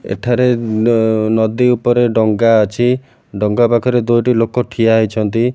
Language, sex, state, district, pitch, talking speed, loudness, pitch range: Odia, male, Odisha, Malkangiri, 115 Hz, 130 wpm, -14 LUFS, 110-120 Hz